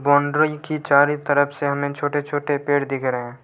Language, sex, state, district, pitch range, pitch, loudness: Hindi, male, Uttar Pradesh, Lalitpur, 140-145 Hz, 145 Hz, -20 LUFS